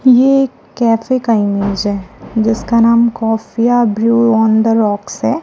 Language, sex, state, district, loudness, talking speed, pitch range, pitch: Hindi, female, Chhattisgarh, Raipur, -13 LUFS, 155 wpm, 220-235 Hz, 225 Hz